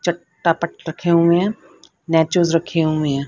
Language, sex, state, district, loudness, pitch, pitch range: Hindi, female, Haryana, Rohtak, -18 LUFS, 170 Hz, 160-175 Hz